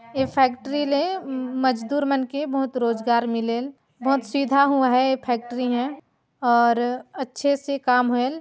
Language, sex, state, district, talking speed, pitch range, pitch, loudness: Chhattisgarhi, female, Chhattisgarh, Jashpur, 150 wpm, 245-275 Hz, 260 Hz, -22 LUFS